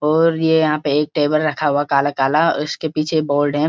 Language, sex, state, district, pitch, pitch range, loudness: Hindi, male, Uttarakhand, Uttarkashi, 150 Hz, 145-155 Hz, -17 LUFS